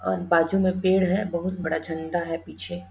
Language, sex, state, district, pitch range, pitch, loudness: Hindi, female, Chhattisgarh, Bastar, 160-185 Hz, 170 Hz, -25 LUFS